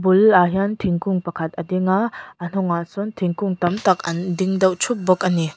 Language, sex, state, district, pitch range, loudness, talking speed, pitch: Mizo, female, Mizoram, Aizawl, 175-195 Hz, -20 LUFS, 215 wpm, 185 Hz